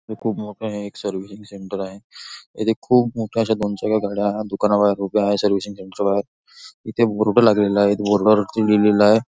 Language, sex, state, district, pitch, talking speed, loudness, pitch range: Marathi, male, Maharashtra, Nagpur, 105 Hz, 195 wpm, -19 LUFS, 100-110 Hz